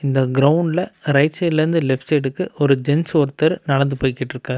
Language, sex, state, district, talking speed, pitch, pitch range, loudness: Tamil, male, Tamil Nadu, Namakkal, 155 wpm, 145 Hz, 135-160 Hz, -18 LUFS